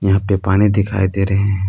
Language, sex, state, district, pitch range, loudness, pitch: Hindi, male, Jharkhand, Palamu, 95-100 Hz, -16 LUFS, 100 Hz